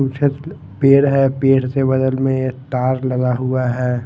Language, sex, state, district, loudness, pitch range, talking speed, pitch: Hindi, male, Haryana, Jhajjar, -17 LUFS, 130-135 Hz, 175 wpm, 130 Hz